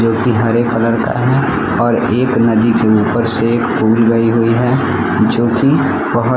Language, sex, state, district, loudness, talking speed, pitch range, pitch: Hindi, male, Bihar, West Champaran, -13 LUFS, 180 wpm, 115-120 Hz, 115 Hz